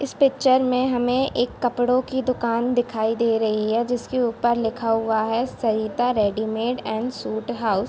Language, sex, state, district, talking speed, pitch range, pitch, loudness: Hindi, female, Bihar, Sitamarhi, 175 wpm, 220-250 Hz, 235 Hz, -22 LUFS